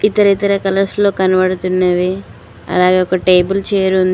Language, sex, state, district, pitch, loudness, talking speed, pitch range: Telugu, female, Telangana, Mahabubabad, 185 Hz, -14 LUFS, 130 wpm, 185-195 Hz